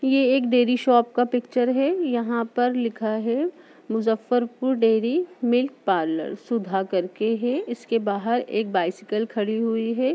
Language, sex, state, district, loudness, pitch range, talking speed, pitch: Hindi, female, Bihar, Sitamarhi, -23 LUFS, 220-250 Hz, 155 wpm, 240 Hz